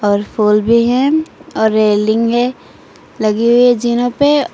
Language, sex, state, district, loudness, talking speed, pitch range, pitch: Hindi, female, Uttar Pradesh, Lucknow, -13 LUFS, 145 wpm, 215-245 Hz, 235 Hz